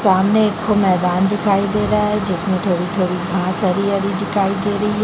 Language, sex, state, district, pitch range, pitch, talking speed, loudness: Hindi, female, Bihar, Vaishali, 185-210 Hz, 200 Hz, 200 wpm, -17 LUFS